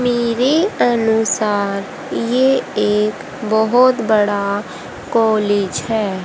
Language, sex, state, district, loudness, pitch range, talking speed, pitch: Hindi, female, Haryana, Rohtak, -16 LUFS, 205-240 Hz, 75 wpm, 220 Hz